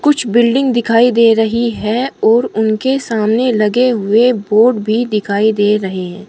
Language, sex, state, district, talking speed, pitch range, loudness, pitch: Hindi, female, Uttar Pradesh, Shamli, 160 wpm, 210-245 Hz, -13 LUFS, 225 Hz